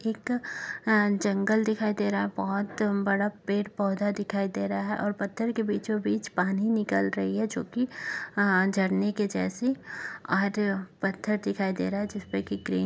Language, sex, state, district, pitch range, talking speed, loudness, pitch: Hindi, female, Uttar Pradesh, Etah, 190-210 Hz, 170 wpm, -28 LUFS, 200 Hz